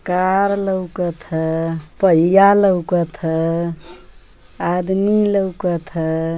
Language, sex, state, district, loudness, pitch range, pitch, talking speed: Bhojpuri, female, Uttar Pradesh, Ghazipur, -17 LUFS, 165-190 Hz, 175 Hz, 85 wpm